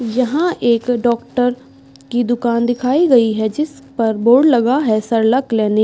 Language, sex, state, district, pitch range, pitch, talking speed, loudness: Hindi, female, Uttar Pradesh, Budaun, 225-255 Hz, 240 Hz, 165 wpm, -15 LUFS